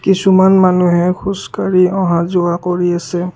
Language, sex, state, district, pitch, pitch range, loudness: Assamese, male, Assam, Kamrup Metropolitan, 180 Hz, 175-190 Hz, -13 LUFS